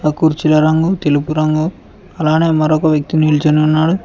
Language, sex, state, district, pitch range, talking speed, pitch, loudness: Telugu, male, Telangana, Mahabubabad, 155-160 Hz, 135 wpm, 155 Hz, -14 LUFS